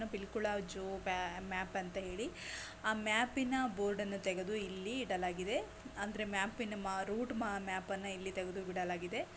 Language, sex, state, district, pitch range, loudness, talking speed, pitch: Kannada, female, Karnataka, Dakshina Kannada, 190-215 Hz, -39 LUFS, 120 wpm, 195 Hz